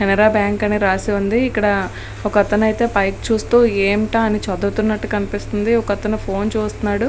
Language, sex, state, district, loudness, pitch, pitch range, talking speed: Telugu, female, Andhra Pradesh, Srikakulam, -18 LUFS, 210 Hz, 205-220 Hz, 150 wpm